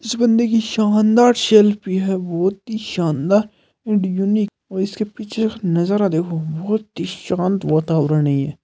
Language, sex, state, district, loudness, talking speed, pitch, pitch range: Hindi, male, Rajasthan, Nagaur, -18 LUFS, 155 wpm, 200 Hz, 170-215 Hz